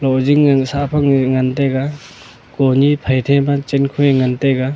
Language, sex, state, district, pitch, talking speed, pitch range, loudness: Wancho, male, Arunachal Pradesh, Longding, 135 Hz, 190 wpm, 130-140 Hz, -15 LUFS